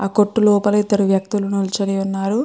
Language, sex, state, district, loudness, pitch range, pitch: Telugu, female, Andhra Pradesh, Krishna, -18 LUFS, 195-210 Hz, 200 Hz